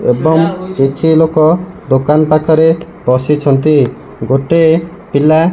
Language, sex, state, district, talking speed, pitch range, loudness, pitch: Odia, male, Odisha, Malkangiri, 100 wpm, 140-165 Hz, -11 LUFS, 155 Hz